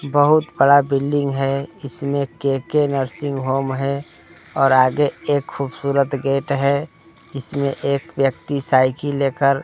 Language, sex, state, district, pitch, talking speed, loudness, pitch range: Hindi, male, Bihar, Kaimur, 140 Hz, 125 wpm, -19 LUFS, 135-145 Hz